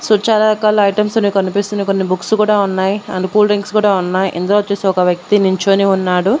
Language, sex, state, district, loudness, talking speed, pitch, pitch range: Telugu, female, Andhra Pradesh, Annamaya, -14 LUFS, 195 wpm, 200 Hz, 190-210 Hz